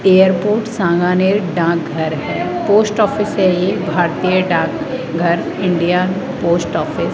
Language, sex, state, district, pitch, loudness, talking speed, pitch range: Hindi, male, Rajasthan, Jaipur, 185 Hz, -16 LUFS, 120 wpm, 170-205 Hz